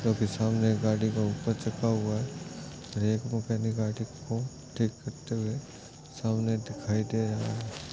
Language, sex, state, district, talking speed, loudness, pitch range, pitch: Hindi, male, Goa, North and South Goa, 120 wpm, -31 LUFS, 110-115 Hz, 110 Hz